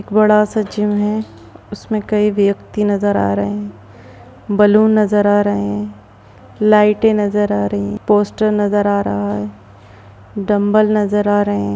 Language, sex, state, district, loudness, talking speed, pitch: Hindi, female, Bihar, Gopalganj, -15 LUFS, 155 wpm, 205 Hz